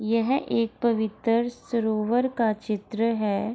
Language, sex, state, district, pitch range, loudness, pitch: Hindi, female, Bihar, Gopalganj, 215-235 Hz, -25 LUFS, 230 Hz